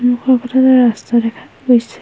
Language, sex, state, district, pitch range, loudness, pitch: Assamese, female, Assam, Hailakandi, 240-260 Hz, -13 LUFS, 245 Hz